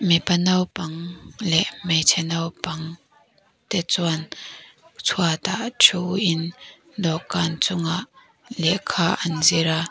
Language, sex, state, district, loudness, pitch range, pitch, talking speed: Mizo, female, Mizoram, Aizawl, -21 LUFS, 165-185 Hz, 170 Hz, 95 wpm